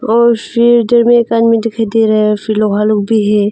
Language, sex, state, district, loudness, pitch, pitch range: Hindi, female, Arunachal Pradesh, Longding, -11 LUFS, 225 Hz, 215-235 Hz